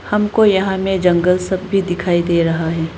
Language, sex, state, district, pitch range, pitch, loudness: Hindi, female, Arunachal Pradesh, Lower Dibang Valley, 170-195 Hz, 185 Hz, -16 LUFS